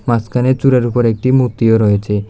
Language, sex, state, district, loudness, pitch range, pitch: Bengali, male, Tripura, South Tripura, -13 LUFS, 110-130 Hz, 120 Hz